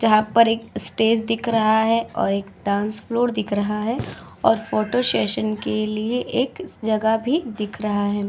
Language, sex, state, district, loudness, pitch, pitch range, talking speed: Hindi, female, Uttar Pradesh, Hamirpur, -21 LUFS, 215 Hz, 205-230 Hz, 180 wpm